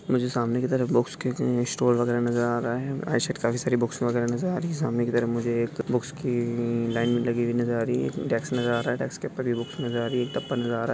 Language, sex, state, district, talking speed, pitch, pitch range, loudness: Hindi, male, Maharashtra, Aurangabad, 280 wpm, 120 Hz, 120-125 Hz, -26 LUFS